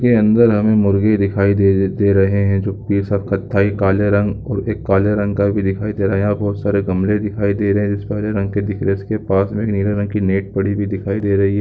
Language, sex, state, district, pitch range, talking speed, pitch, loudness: Hindi, male, Chhattisgarh, Korba, 100-105 Hz, 250 wpm, 100 Hz, -17 LUFS